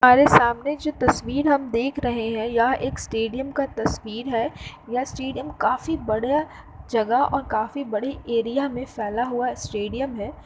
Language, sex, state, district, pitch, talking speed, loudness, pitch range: Hindi, female, Uttar Pradesh, Jalaun, 250 Hz, 160 wpm, -23 LUFS, 230-275 Hz